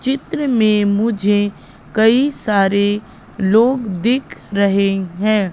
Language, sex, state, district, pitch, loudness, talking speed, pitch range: Hindi, female, Madhya Pradesh, Katni, 210 Hz, -16 LUFS, 100 wpm, 200-230 Hz